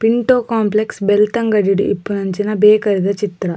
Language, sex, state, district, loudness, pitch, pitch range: Tulu, female, Karnataka, Dakshina Kannada, -15 LUFS, 210 Hz, 200-220 Hz